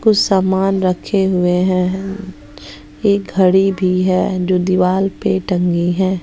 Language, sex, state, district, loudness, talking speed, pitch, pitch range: Hindi, female, Bihar, West Champaran, -15 LUFS, 135 wpm, 185 Hz, 180-195 Hz